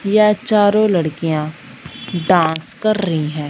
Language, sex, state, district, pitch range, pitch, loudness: Hindi, female, Punjab, Fazilka, 155-210 Hz, 175 Hz, -16 LUFS